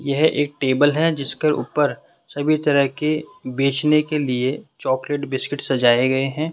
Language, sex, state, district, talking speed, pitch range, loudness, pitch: Hindi, male, Rajasthan, Jaipur, 155 wpm, 135-150 Hz, -20 LUFS, 145 Hz